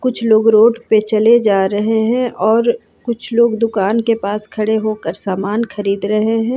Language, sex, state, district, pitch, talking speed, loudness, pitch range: Hindi, female, Jharkhand, Ranchi, 220 Hz, 185 wpm, -15 LUFS, 210-230 Hz